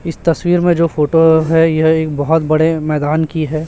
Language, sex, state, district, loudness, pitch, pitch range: Hindi, male, Chhattisgarh, Raipur, -13 LUFS, 160 Hz, 155-165 Hz